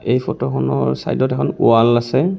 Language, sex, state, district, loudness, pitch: Assamese, male, Assam, Kamrup Metropolitan, -17 LUFS, 115 Hz